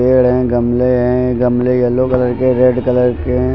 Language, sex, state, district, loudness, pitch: Hindi, male, Uttar Pradesh, Lucknow, -13 LUFS, 125 Hz